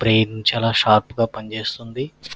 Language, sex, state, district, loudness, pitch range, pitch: Telugu, male, Andhra Pradesh, Krishna, -20 LUFS, 110-115 Hz, 110 Hz